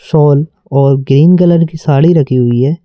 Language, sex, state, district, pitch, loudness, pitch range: Hindi, male, Madhya Pradesh, Bhopal, 150 Hz, -9 LUFS, 135-165 Hz